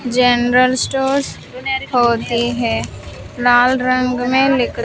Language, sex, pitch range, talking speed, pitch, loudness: Hindi, female, 240-255 Hz, 85 wpm, 245 Hz, -15 LUFS